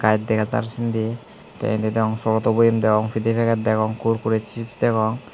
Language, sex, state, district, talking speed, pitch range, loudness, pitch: Chakma, male, Tripura, Unakoti, 180 wpm, 110-115 Hz, -21 LUFS, 110 Hz